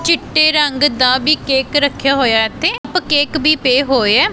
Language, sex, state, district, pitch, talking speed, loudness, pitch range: Punjabi, female, Punjab, Pathankot, 285 Hz, 210 wpm, -13 LUFS, 260-305 Hz